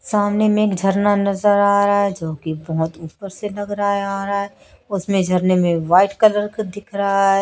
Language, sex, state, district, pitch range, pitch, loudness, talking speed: Hindi, female, Chhattisgarh, Raipur, 185-205 Hz, 200 Hz, -18 LUFS, 220 wpm